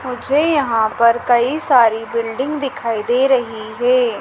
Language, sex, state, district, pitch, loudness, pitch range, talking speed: Hindi, female, Madhya Pradesh, Dhar, 245 Hz, -16 LUFS, 230-265 Hz, 140 wpm